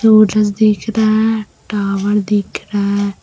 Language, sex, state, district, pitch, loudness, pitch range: Hindi, female, Jharkhand, Deoghar, 210 Hz, -15 LUFS, 200-215 Hz